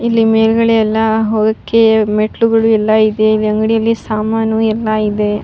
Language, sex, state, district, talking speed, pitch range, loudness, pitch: Kannada, female, Karnataka, Raichur, 130 wpm, 215-225 Hz, -13 LUFS, 220 Hz